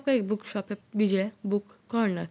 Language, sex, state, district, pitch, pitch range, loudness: Hindi, female, Bihar, Muzaffarpur, 205 Hz, 200-215 Hz, -29 LUFS